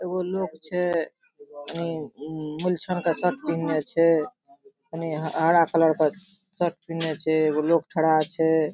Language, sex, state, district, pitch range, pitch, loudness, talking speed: Maithili, female, Bihar, Darbhanga, 155-180 Hz, 165 Hz, -25 LUFS, 135 wpm